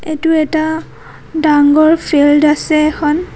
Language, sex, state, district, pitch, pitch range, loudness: Assamese, female, Assam, Kamrup Metropolitan, 310 Hz, 300-320 Hz, -12 LUFS